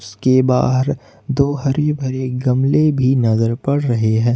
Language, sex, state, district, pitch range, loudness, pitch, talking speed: Hindi, male, Jharkhand, Ranchi, 120-140 Hz, -17 LUFS, 130 Hz, 150 wpm